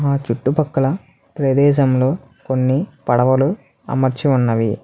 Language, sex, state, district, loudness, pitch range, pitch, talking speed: Telugu, male, Telangana, Hyderabad, -17 LUFS, 130-140 Hz, 135 Hz, 85 wpm